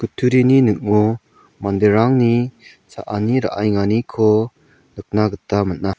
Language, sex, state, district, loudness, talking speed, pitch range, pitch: Garo, male, Meghalaya, South Garo Hills, -17 LUFS, 80 wpm, 105-120 Hz, 110 Hz